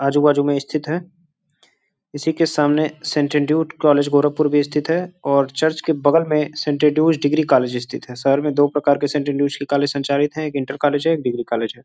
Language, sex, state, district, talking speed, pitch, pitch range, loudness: Hindi, male, Uttar Pradesh, Gorakhpur, 225 wpm, 145 Hz, 140-155 Hz, -19 LUFS